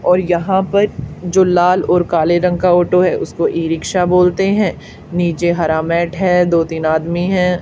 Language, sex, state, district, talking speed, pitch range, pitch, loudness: Hindi, female, Haryana, Charkhi Dadri, 190 wpm, 170-180 Hz, 175 Hz, -15 LUFS